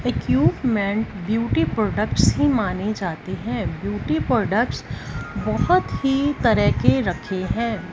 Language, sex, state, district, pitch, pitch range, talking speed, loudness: Hindi, female, Punjab, Fazilka, 205 Hz, 185-235 Hz, 115 wpm, -21 LUFS